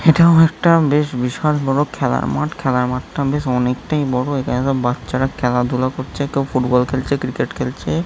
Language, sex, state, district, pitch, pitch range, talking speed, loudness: Bengali, male, West Bengal, Jhargram, 130 Hz, 125-150 Hz, 180 wpm, -18 LUFS